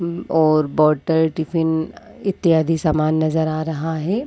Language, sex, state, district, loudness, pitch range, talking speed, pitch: Hindi, female, Chhattisgarh, Raigarh, -19 LUFS, 155-165 Hz, 140 wpm, 160 Hz